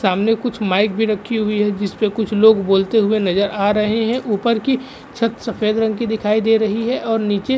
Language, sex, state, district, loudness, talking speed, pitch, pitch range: Hindi, male, Uttar Pradesh, Jalaun, -17 LUFS, 240 wpm, 215 Hz, 205-225 Hz